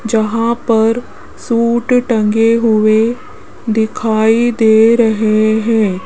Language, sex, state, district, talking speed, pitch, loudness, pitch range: Hindi, female, Rajasthan, Jaipur, 90 wpm, 225 Hz, -12 LUFS, 220-235 Hz